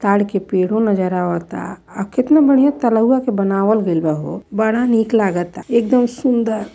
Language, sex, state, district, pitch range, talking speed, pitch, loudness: Bhojpuri, female, Uttar Pradesh, Varanasi, 195-240 Hz, 180 wpm, 215 Hz, -16 LUFS